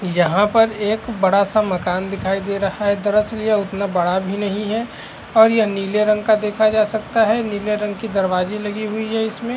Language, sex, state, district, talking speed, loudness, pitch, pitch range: Hindi, male, Bihar, Araria, 200 wpm, -18 LUFS, 210 Hz, 195-220 Hz